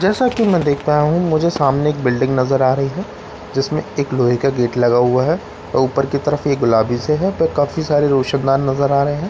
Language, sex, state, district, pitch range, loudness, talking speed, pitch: Hindi, male, Bihar, Katihar, 130-150 Hz, -16 LUFS, 230 wpm, 140 Hz